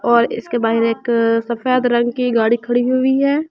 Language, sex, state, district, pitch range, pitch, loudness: Hindi, female, Delhi, New Delhi, 230-255 Hz, 240 Hz, -16 LUFS